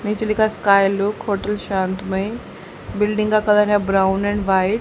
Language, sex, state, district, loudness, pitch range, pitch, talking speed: Hindi, female, Haryana, Rohtak, -19 LUFS, 195-210 Hz, 205 Hz, 185 wpm